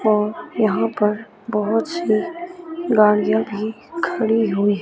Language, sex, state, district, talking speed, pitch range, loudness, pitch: Hindi, female, Chandigarh, Chandigarh, 135 wpm, 210-225 Hz, -20 LUFS, 215 Hz